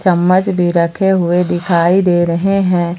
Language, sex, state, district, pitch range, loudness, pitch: Hindi, female, Jharkhand, Palamu, 175-190 Hz, -13 LUFS, 180 Hz